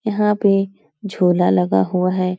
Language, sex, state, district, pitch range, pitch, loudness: Hindi, female, Bihar, Supaul, 180-205 Hz, 185 Hz, -17 LUFS